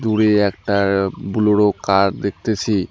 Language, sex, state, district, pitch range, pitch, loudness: Bengali, male, West Bengal, Alipurduar, 100-105 Hz, 100 Hz, -18 LUFS